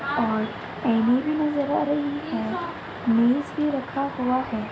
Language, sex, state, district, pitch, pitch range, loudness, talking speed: Hindi, female, Uttar Pradesh, Ghazipur, 260 Hz, 230-290 Hz, -24 LUFS, 150 wpm